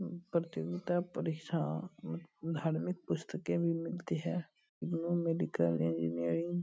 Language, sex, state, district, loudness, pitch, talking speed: Hindi, male, Bihar, Purnia, -36 LUFS, 165 Hz, 100 wpm